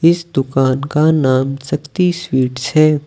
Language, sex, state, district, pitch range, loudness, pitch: Hindi, male, Uttar Pradesh, Saharanpur, 135-165 Hz, -15 LUFS, 145 Hz